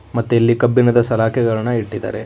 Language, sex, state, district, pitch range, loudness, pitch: Kannada, male, Karnataka, Koppal, 110-120 Hz, -16 LUFS, 115 Hz